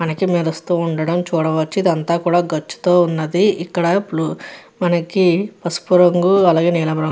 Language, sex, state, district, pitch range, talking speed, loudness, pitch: Telugu, female, Andhra Pradesh, Guntur, 165-180 Hz, 125 wpm, -17 LUFS, 175 Hz